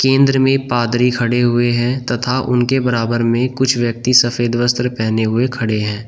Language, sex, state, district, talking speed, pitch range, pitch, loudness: Hindi, male, Uttar Pradesh, Shamli, 180 wpm, 120-125 Hz, 120 Hz, -15 LUFS